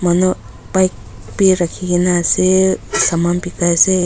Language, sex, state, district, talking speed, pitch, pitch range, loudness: Nagamese, female, Nagaland, Dimapur, 135 wpm, 180 Hz, 175-185 Hz, -15 LUFS